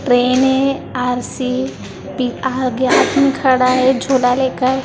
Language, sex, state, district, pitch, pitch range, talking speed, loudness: Hindi, female, Maharashtra, Mumbai Suburban, 260 Hz, 255-265 Hz, 125 wpm, -15 LUFS